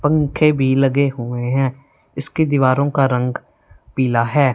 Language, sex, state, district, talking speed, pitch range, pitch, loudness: Hindi, female, Punjab, Fazilka, 145 wpm, 130-145 Hz, 135 Hz, -17 LUFS